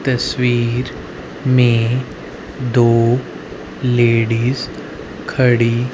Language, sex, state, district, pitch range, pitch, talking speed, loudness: Hindi, male, Haryana, Rohtak, 115-125 Hz, 120 Hz, 50 wpm, -16 LUFS